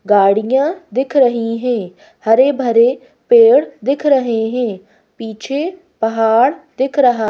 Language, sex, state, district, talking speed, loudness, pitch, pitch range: Hindi, female, Madhya Pradesh, Bhopal, 115 wpm, -14 LUFS, 245 Hz, 225-280 Hz